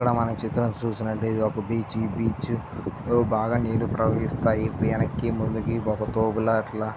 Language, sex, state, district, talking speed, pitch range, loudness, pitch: Telugu, male, Andhra Pradesh, Visakhapatnam, 155 wpm, 110-115 Hz, -26 LUFS, 110 Hz